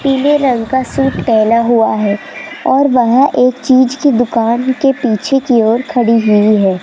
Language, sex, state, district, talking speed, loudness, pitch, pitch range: Hindi, female, Rajasthan, Jaipur, 175 wpm, -12 LUFS, 250 Hz, 230-270 Hz